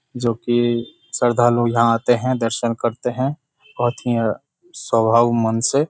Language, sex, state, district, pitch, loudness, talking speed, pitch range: Hindi, male, Bihar, Kishanganj, 120 Hz, -19 LUFS, 140 wpm, 115-125 Hz